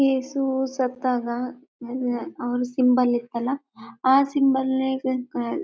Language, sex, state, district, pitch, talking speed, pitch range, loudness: Kannada, female, Karnataka, Bellary, 255 Hz, 75 wpm, 245-265 Hz, -24 LUFS